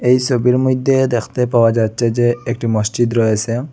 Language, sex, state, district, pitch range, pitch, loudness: Bengali, male, Assam, Hailakandi, 115-125 Hz, 120 Hz, -16 LUFS